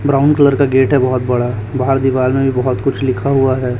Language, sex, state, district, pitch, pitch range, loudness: Hindi, male, Chhattisgarh, Raipur, 130 Hz, 130-135 Hz, -14 LUFS